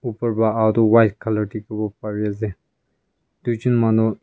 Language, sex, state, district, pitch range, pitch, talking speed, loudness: Nagamese, male, Nagaland, Kohima, 105-115 Hz, 110 Hz, 140 wpm, -20 LUFS